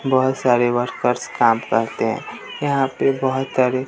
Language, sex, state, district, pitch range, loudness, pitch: Hindi, male, Bihar, West Champaran, 120-135 Hz, -20 LUFS, 130 Hz